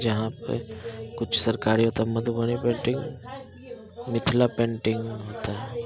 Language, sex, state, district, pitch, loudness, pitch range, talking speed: Hindi, male, Bihar, Muzaffarpur, 115 Hz, -26 LUFS, 110-120 Hz, 70 wpm